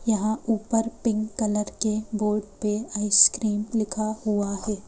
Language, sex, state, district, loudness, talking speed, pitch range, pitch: Hindi, female, Madhya Pradesh, Bhopal, -24 LUFS, 135 wpm, 210-220 Hz, 215 Hz